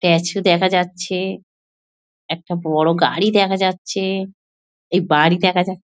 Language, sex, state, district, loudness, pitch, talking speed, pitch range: Bengali, female, West Bengal, North 24 Parganas, -18 LUFS, 180 Hz, 125 wpm, 165-190 Hz